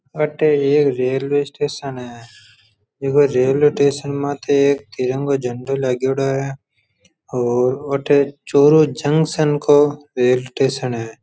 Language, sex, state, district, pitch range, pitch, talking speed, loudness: Rajasthani, male, Rajasthan, Churu, 125-145 Hz, 140 Hz, 120 wpm, -17 LUFS